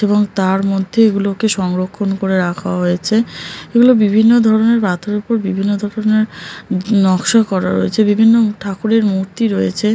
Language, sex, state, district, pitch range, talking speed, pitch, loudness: Bengali, male, West Bengal, Jhargram, 190-220 Hz, 140 wpm, 205 Hz, -14 LUFS